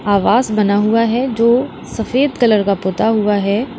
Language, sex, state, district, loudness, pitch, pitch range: Hindi, female, Uttar Pradesh, Lalitpur, -15 LUFS, 220 Hz, 205-240 Hz